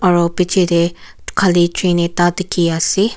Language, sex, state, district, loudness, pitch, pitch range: Nagamese, female, Nagaland, Kohima, -15 LUFS, 175 Hz, 170-185 Hz